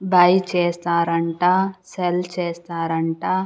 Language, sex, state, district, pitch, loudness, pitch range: Telugu, female, Andhra Pradesh, Sri Satya Sai, 175 Hz, -20 LUFS, 170-185 Hz